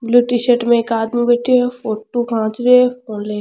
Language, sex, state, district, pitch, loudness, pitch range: Rajasthani, female, Rajasthan, Churu, 240 Hz, -16 LUFS, 225-245 Hz